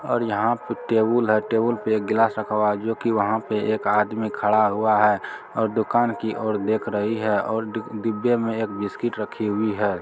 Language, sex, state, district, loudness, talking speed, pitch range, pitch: Maithili, male, Bihar, Supaul, -23 LUFS, 235 wpm, 105-115 Hz, 110 Hz